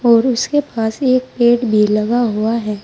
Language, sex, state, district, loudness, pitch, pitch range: Hindi, female, Uttar Pradesh, Saharanpur, -15 LUFS, 235 Hz, 220-255 Hz